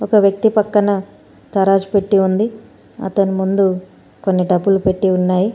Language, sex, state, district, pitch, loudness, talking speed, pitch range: Telugu, female, Telangana, Komaram Bheem, 195 Hz, -16 LUFS, 130 wpm, 190-205 Hz